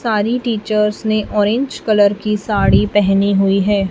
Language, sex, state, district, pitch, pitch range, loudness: Hindi, female, Chhattisgarh, Raipur, 210 Hz, 205-215 Hz, -15 LUFS